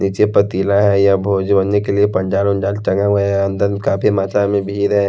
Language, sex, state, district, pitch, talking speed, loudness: Hindi, male, Haryana, Rohtak, 100 Hz, 190 wpm, -15 LUFS